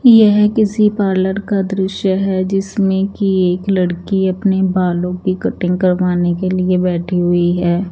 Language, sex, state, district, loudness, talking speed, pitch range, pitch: Hindi, female, Chandigarh, Chandigarh, -15 LUFS, 150 wpm, 180-195 Hz, 190 Hz